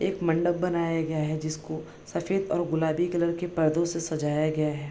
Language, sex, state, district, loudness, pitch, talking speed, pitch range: Hindi, female, Bihar, Bhagalpur, -27 LUFS, 165 Hz, 195 wpm, 155-170 Hz